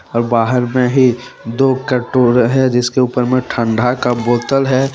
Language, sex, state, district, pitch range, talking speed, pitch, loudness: Hindi, male, Jharkhand, Deoghar, 120-130 Hz, 160 wpm, 125 Hz, -14 LUFS